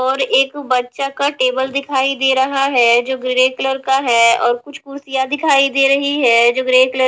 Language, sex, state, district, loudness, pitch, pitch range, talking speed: Hindi, female, Haryana, Charkhi Dadri, -15 LUFS, 265 Hz, 255-275 Hz, 210 wpm